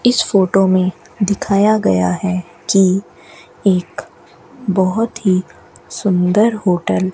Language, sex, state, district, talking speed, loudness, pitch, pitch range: Hindi, female, Rajasthan, Bikaner, 110 wpm, -16 LUFS, 190 Hz, 180-205 Hz